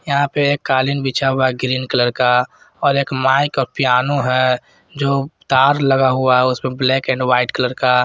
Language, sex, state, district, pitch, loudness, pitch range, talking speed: Hindi, male, Jharkhand, Garhwa, 130 Hz, -16 LUFS, 125-140 Hz, 200 wpm